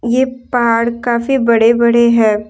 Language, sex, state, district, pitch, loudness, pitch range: Hindi, female, Jharkhand, Deoghar, 235 Hz, -13 LUFS, 230-245 Hz